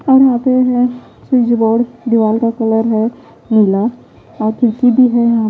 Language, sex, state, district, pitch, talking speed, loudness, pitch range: Hindi, female, Bihar, West Champaran, 235 Hz, 185 wpm, -13 LUFS, 225-250 Hz